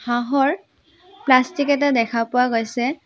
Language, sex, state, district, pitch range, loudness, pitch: Assamese, female, Assam, Sonitpur, 240-285 Hz, -19 LUFS, 255 Hz